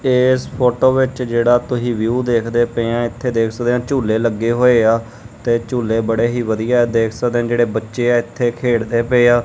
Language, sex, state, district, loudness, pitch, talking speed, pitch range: Punjabi, male, Punjab, Kapurthala, -16 LUFS, 120 Hz, 195 wpm, 115-125 Hz